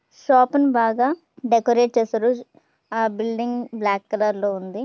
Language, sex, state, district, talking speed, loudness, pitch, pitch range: Telugu, female, Andhra Pradesh, Visakhapatnam, 135 wpm, -21 LUFS, 235 Hz, 215-245 Hz